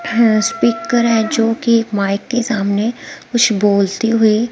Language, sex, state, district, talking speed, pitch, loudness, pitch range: Hindi, female, Himachal Pradesh, Shimla, 160 wpm, 225 Hz, -15 LUFS, 215-235 Hz